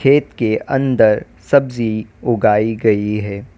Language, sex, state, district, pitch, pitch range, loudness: Hindi, female, Uttar Pradesh, Lalitpur, 110 Hz, 105-130 Hz, -16 LUFS